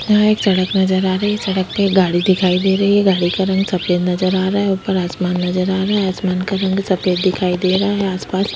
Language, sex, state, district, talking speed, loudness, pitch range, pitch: Hindi, female, Chhattisgarh, Sukma, 260 wpm, -16 LUFS, 185-195 Hz, 190 Hz